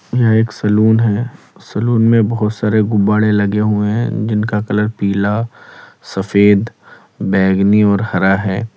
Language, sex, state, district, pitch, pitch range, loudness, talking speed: Hindi, male, Uttar Pradesh, Lalitpur, 105 Hz, 100-110 Hz, -14 LUFS, 135 wpm